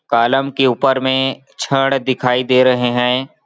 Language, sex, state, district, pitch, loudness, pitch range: Hindi, male, Chhattisgarh, Balrampur, 130 Hz, -15 LUFS, 125-135 Hz